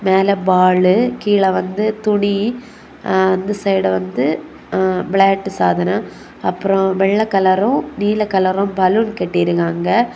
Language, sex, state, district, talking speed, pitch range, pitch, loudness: Tamil, female, Tamil Nadu, Kanyakumari, 105 wpm, 185-210 Hz, 195 Hz, -16 LUFS